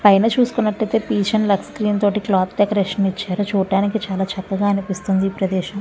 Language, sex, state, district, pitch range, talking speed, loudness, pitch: Telugu, female, Andhra Pradesh, Visakhapatnam, 190-210 Hz, 165 wpm, -19 LUFS, 200 Hz